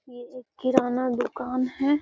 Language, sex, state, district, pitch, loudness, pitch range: Hindi, female, Bihar, Gaya, 255 Hz, -26 LUFS, 245-270 Hz